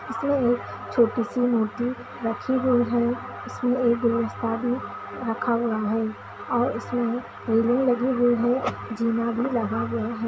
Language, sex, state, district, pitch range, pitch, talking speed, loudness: Hindi, female, Chhattisgarh, Raigarh, 230-250 Hz, 240 Hz, 150 wpm, -25 LUFS